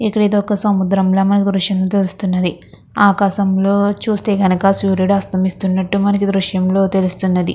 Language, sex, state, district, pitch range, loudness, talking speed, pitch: Telugu, female, Andhra Pradesh, Krishna, 190-200 Hz, -15 LUFS, 105 wpm, 195 Hz